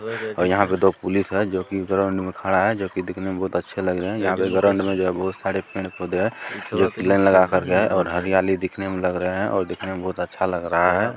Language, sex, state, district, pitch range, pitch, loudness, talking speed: Hindi, male, Bihar, Sitamarhi, 90-95 Hz, 95 Hz, -22 LUFS, 280 wpm